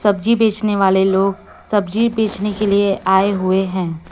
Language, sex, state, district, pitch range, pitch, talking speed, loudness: Hindi, female, Chhattisgarh, Raipur, 190-210 Hz, 200 Hz, 160 wpm, -16 LUFS